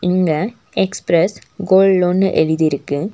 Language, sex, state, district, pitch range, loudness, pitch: Tamil, female, Tamil Nadu, Nilgiris, 160-195 Hz, -16 LUFS, 185 Hz